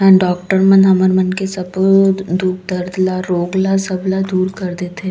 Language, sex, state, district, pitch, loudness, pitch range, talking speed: Chhattisgarhi, female, Chhattisgarh, Raigarh, 185 Hz, -15 LUFS, 185-190 Hz, 185 wpm